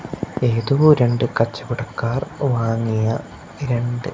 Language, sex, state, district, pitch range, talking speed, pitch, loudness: Malayalam, male, Kerala, Kasaragod, 115-135 Hz, 70 wpm, 120 Hz, -20 LUFS